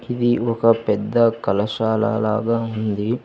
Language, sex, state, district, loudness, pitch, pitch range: Telugu, male, Telangana, Hyderabad, -20 LUFS, 115 Hz, 110-115 Hz